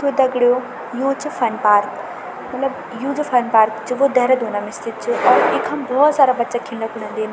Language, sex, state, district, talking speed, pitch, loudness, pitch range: Garhwali, female, Uttarakhand, Tehri Garhwal, 195 wpm, 250 Hz, -18 LUFS, 225-275 Hz